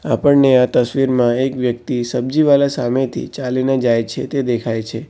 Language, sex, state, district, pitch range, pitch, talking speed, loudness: Gujarati, male, Gujarat, Valsad, 120-135 Hz, 125 Hz, 155 wpm, -16 LUFS